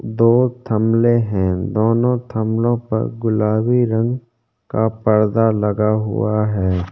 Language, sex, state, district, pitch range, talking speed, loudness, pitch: Hindi, male, Chhattisgarh, Korba, 105-115 Hz, 115 wpm, -17 LUFS, 110 Hz